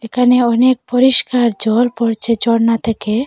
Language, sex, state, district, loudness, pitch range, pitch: Bengali, female, Assam, Hailakandi, -14 LUFS, 230-245 Hz, 235 Hz